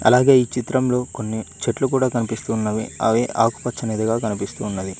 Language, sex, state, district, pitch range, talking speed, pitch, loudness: Telugu, male, Telangana, Mahabubabad, 110-125 Hz, 130 wpm, 115 Hz, -21 LUFS